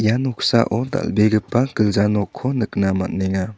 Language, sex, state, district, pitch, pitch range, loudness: Garo, male, Meghalaya, South Garo Hills, 110 Hz, 100-120 Hz, -19 LUFS